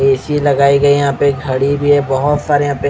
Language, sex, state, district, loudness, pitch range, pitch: Hindi, male, Chhattisgarh, Raipur, -13 LUFS, 140-145 Hz, 140 Hz